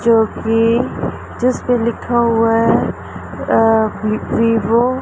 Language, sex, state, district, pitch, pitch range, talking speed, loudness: Hindi, female, Punjab, Pathankot, 230 Hz, 225-235 Hz, 95 wpm, -16 LUFS